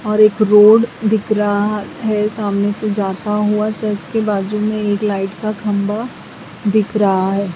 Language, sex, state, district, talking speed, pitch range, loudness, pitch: Hindi, female, Bihar, West Champaran, 165 wpm, 205-215 Hz, -16 LUFS, 210 Hz